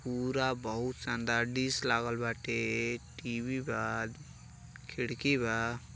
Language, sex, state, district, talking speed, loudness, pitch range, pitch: Bhojpuri, male, Uttar Pradesh, Deoria, 100 wpm, -33 LUFS, 115-130 Hz, 120 Hz